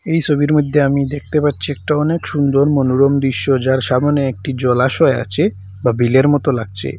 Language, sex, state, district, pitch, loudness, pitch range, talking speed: Bengali, male, Assam, Hailakandi, 140 Hz, -15 LUFS, 125-145 Hz, 170 wpm